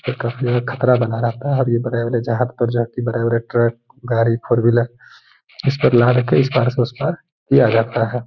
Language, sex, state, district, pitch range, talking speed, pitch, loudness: Hindi, male, Bihar, Gaya, 115-125 Hz, 195 wpm, 120 Hz, -18 LUFS